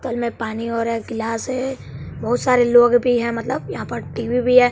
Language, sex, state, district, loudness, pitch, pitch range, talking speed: Hindi, male, Bihar, West Champaran, -19 LUFS, 240 Hz, 230-250 Hz, 215 wpm